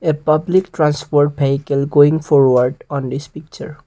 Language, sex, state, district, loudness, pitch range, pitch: English, male, Assam, Kamrup Metropolitan, -15 LUFS, 140-155 Hz, 145 Hz